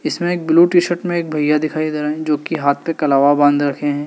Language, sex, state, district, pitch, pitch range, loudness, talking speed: Hindi, male, Madhya Pradesh, Dhar, 155 Hz, 145-170 Hz, -16 LUFS, 280 wpm